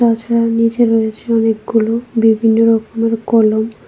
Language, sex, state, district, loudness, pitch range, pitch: Bengali, female, Tripura, West Tripura, -14 LUFS, 225-230 Hz, 225 Hz